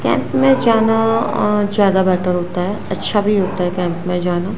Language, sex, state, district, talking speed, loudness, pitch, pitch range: Hindi, female, Gujarat, Gandhinagar, 195 wpm, -16 LUFS, 195 Hz, 180-215 Hz